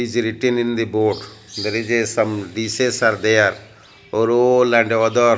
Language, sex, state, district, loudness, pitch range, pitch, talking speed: English, male, Odisha, Malkangiri, -18 LUFS, 110-120 Hz, 115 Hz, 180 wpm